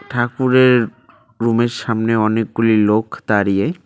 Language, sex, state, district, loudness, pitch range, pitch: Bengali, male, West Bengal, Cooch Behar, -16 LUFS, 110-120 Hz, 115 Hz